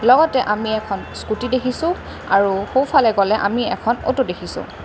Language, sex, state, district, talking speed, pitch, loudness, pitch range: Assamese, female, Assam, Kamrup Metropolitan, 150 wpm, 225 Hz, -19 LUFS, 200-255 Hz